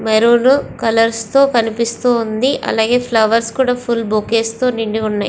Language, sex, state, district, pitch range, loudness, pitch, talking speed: Telugu, female, Andhra Pradesh, Visakhapatnam, 225-245 Hz, -15 LUFS, 230 Hz, 135 wpm